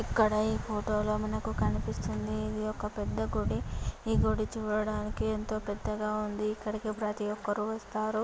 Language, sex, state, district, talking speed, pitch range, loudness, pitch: Telugu, female, Andhra Pradesh, Chittoor, 140 wpm, 205-215 Hz, -32 LUFS, 215 Hz